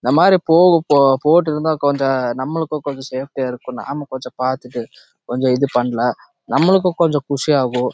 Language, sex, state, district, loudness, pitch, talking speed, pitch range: Tamil, male, Karnataka, Chamarajanagar, -17 LUFS, 140 Hz, 105 wpm, 130-155 Hz